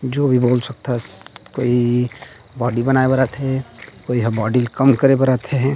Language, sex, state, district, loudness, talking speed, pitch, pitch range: Chhattisgarhi, male, Chhattisgarh, Rajnandgaon, -18 LUFS, 185 wpm, 125 Hz, 120-135 Hz